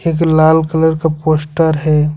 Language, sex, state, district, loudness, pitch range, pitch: Hindi, male, Jharkhand, Ranchi, -13 LUFS, 155-160 Hz, 160 Hz